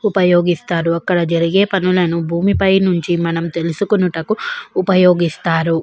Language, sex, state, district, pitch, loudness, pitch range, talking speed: Telugu, female, Andhra Pradesh, Visakhapatnam, 175 Hz, -15 LUFS, 170-190 Hz, 90 wpm